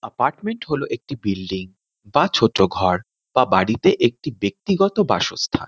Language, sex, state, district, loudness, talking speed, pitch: Bengali, male, West Bengal, Kolkata, -20 LUFS, 135 wpm, 120 Hz